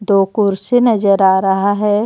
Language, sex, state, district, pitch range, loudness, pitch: Hindi, female, Jharkhand, Ranchi, 195-210 Hz, -13 LUFS, 200 Hz